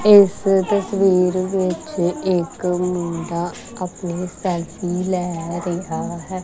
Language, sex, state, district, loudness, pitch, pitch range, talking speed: Punjabi, female, Punjab, Kapurthala, -20 LUFS, 180 Hz, 175-185 Hz, 95 wpm